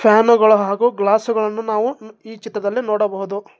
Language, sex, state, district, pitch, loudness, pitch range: Kannada, male, Karnataka, Bangalore, 215 Hz, -17 LUFS, 210-225 Hz